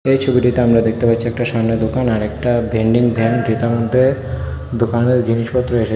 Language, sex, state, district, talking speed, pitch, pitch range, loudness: Bengali, male, Tripura, West Tripura, 160 wpm, 120 Hz, 115-125 Hz, -16 LUFS